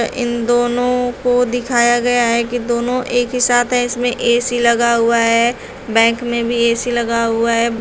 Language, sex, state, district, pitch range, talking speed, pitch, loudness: Hindi, female, Uttar Pradesh, Shamli, 235-245 Hz, 185 wpm, 240 Hz, -15 LUFS